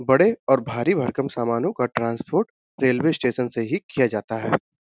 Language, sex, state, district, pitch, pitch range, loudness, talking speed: Hindi, male, Uttar Pradesh, Budaun, 125 Hz, 115-130 Hz, -23 LUFS, 175 wpm